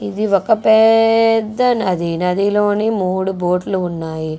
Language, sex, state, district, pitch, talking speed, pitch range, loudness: Telugu, female, Andhra Pradesh, Guntur, 200 Hz, 125 wpm, 180-220 Hz, -15 LUFS